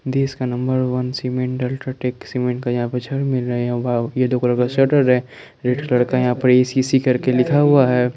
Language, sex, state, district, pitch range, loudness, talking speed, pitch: Hindi, male, Bihar, Kaimur, 125-130 Hz, -19 LUFS, 235 wpm, 125 Hz